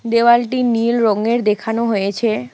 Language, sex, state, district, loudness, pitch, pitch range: Bengali, female, West Bengal, Alipurduar, -16 LUFS, 230 Hz, 215-235 Hz